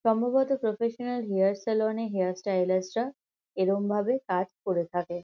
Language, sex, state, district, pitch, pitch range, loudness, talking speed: Bengali, female, West Bengal, Kolkata, 205 Hz, 185-230 Hz, -28 LUFS, 135 wpm